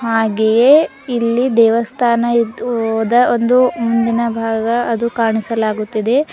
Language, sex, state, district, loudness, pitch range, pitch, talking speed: Kannada, female, Karnataka, Bidar, -15 LUFS, 225-240 Hz, 235 Hz, 95 wpm